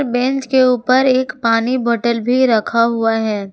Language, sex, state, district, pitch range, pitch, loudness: Hindi, female, Jharkhand, Ranchi, 230-255 Hz, 240 Hz, -15 LUFS